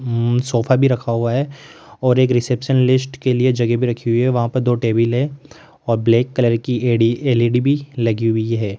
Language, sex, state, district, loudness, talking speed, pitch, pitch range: Hindi, male, Rajasthan, Jaipur, -17 LUFS, 220 wpm, 125 Hz, 115-130 Hz